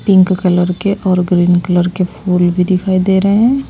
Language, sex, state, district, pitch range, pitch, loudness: Hindi, female, Uttar Pradesh, Saharanpur, 180-195 Hz, 185 Hz, -13 LUFS